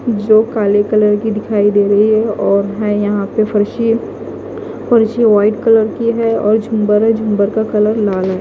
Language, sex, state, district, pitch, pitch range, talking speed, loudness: Hindi, female, Punjab, Fazilka, 215 Hz, 205-220 Hz, 185 wpm, -13 LUFS